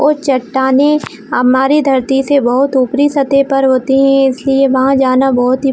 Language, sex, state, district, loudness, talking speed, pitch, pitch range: Hindi, female, Jharkhand, Jamtara, -11 LUFS, 180 wpm, 270 Hz, 260-275 Hz